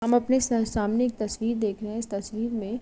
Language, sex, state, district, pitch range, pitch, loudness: Hindi, female, Uttar Pradesh, Jyotiba Phule Nagar, 215-235 Hz, 225 Hz, -27 LUFS